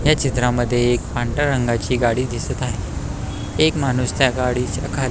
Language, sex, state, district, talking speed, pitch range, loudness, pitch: Marathi, male, Maharashtra, Pune, 165 wpm, 120-130 Hz, -20 LUFS, 125 Hz